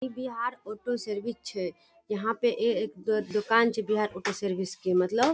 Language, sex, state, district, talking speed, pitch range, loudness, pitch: Hindi, female, Bihar, Darbhanga, 180 wpm, 200-235 Hz, -29 LUFS, 215 Hz